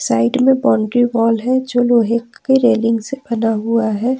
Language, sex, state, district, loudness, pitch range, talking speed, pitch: Hindi, female, Jharkhand, Ranchi, -15 LUFS, 225-255 Hz, 185 wpm, 235 Hz